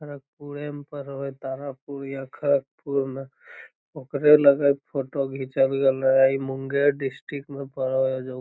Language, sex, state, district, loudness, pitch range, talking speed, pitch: Magahi, female, Bihar, Lakhisarai, -24 LUFS, 135-140 Hz, 150 wpm, 140 Hz